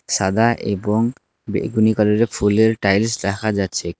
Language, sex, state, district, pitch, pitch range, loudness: Bengali, male, West Bengal, Alipurduar, 105 Hz, 100-110 Hz, -18 LUFS